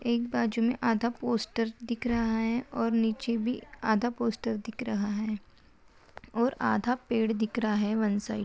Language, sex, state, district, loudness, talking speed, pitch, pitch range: Hindi, female, Maharashtra, Pune, -30 LUFS, 175 wpm, 230 Hz, 220-235 Hz